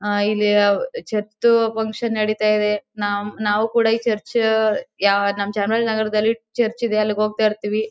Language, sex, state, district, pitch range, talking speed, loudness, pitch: Kannada, female, Karnataka, Chamarajanagar, 210-225 Hz, 115 wpm, -20 LUFS, 215 Hz